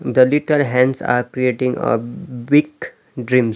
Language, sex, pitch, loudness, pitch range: English, male, 125 Hz, -17 LUFS, 125-140 Hz